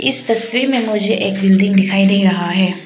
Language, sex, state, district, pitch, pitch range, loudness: Hindi, female, Arunachal Pradesh, Papum Pare, 195 Hz, 190-220 Hz, -14 LUFS